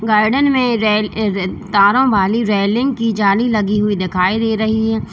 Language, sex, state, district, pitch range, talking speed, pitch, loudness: Hindi, female, Uttar Pradesh, Lalitpur, 205-230 Hz, 150 wpm, 215 Hz, -15 LUFS